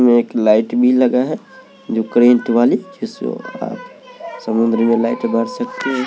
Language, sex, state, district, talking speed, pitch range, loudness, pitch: Hindi, male, Maharashtra, Mumbai Suburban, 150 wpm, 115-190 Hz, -16 LUFS, 125 Hz